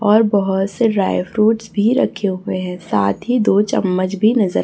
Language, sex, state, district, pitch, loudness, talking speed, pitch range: Hindi, female, Chhattisgarh, Raipur, 205 Hz, -17 LUFS, 195 wpm, 185-220 Hz